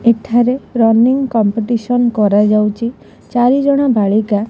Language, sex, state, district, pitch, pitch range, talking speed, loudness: Odia, female, Odisha, Khordha, 235 Hz, 215-245 Hz, 105 wpm, -13 LUFS